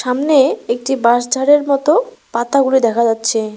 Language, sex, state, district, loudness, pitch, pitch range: Bengali, female, West Bengal, Cooch Behar, -14 LUFS, 265 Hz, 235-280 Hz